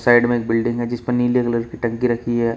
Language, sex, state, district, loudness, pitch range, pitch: Hindi, male, Uttar Pradesh, Shamli, -19 LUFS, 115-120 Hz, 120 Hz